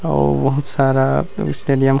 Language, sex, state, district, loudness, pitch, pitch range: Chhattisgarhi, male, Chhattisgarh, Rajnandgaon, -16 LUFS, 135 Hz, 130-135 Hz